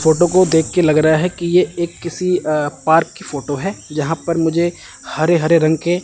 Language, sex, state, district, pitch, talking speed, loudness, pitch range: Hindi, male, Chandigarh, Chandigarh, 170 Hz, 230 wpm, -16 LUFS, 155-175 Hz